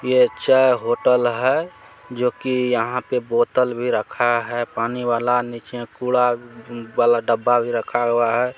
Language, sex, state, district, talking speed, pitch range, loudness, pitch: Maithili, male, Bihar, Supaul, 160 wpm, 120-125 Hz, -20 LUFS, 120 Hz